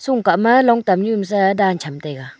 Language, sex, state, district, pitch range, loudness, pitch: Wancho, female, Arunachal Pradesh, Longding, 180-230 Hz, -16 LUFS, 200 Hz